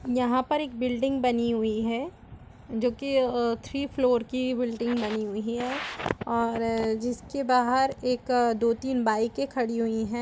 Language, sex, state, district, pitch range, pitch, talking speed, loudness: Hindi, female, Chhattisgarh, Kabirdham, 230-255 Hz, 245 Hz, 145 wpm, -27 LUFS